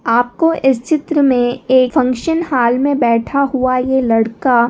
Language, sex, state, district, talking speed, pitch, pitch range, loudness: Hindi, female, Maharashtra, Nagpur, 165 wpm, 255 Hz, 240-280 Hz, -14 LUFS